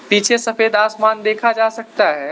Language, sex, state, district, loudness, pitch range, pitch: Hindi, male, Arunachal Pradesh, Lower Dibang Valley, -16 LUFS, 215-225 Hz, 220 Hz